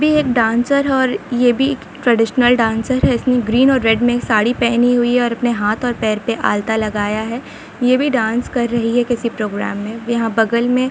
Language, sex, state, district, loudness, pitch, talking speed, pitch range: Hindi, female, Jharkhand, Sahebganj, -16 LUFS, 240 Hz, 215 wpm, 225-250 Hz